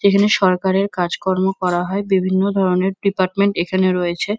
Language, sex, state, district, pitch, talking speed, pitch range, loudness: Bengali, female, West Bengal, North 24 Parganas, 190 Hz, 135 wpm, 185-200 Hz, -18 LUFS